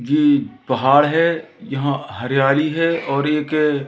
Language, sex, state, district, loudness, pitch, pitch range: Hindi, male, Madhya Pradesh, Katni, -18 LUFS, 150 Hz, 140-165 Hz